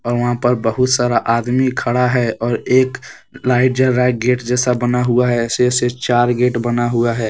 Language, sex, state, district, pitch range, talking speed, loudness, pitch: Hindi, male, Jharkhand, Deoghar, 120-125 Hz, 205 wpm, -16 LUFS, 125 Hz